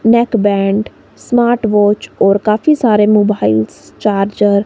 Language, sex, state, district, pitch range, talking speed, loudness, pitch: Hindi, female, Himachal Pradesh, Shimla, 200-225 Hz, 105 wpm, -13 LUFS, 210 Hz